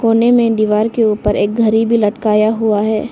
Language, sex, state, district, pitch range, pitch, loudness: Hindi, female, Arunachal Pradesh, Lower Dibang Valley, 215-230 Hz, 220 Hz, -13 LUFS